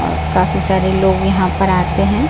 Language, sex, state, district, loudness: Hindi, female, Chhattisgarh, Raipur, -15 LUFS